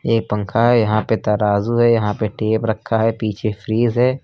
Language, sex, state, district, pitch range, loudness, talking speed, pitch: Hindi, male, Uttar Pradesh, Lucknow, 105-115 Hz, -18 LUFS, 210 wpm, 110 Hz